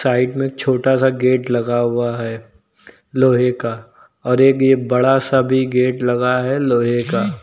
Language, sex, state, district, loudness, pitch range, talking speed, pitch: Hindi, male, Uttar Pradesh, Lucknow, -16 LUFS, 120-130 Hz, 180 wpm, 125 Hz